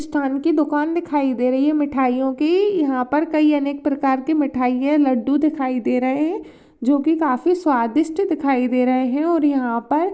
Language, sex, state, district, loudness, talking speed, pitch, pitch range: Hindi, female, Rajasthan, Churu, -19 LUFS, 195 wpm, 285 Hz, 260-310 Hz